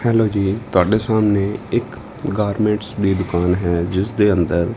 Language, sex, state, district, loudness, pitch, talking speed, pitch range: Punjabi, male, Punjab, Fazilka, -18 LUFS, 100 Hz, 165 wpm, 90-110 Hz